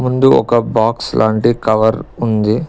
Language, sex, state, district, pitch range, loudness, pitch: Telugu, male, Telangana, Mahabubabad, 110-120 Hz, -14 LUFS, 115 Hz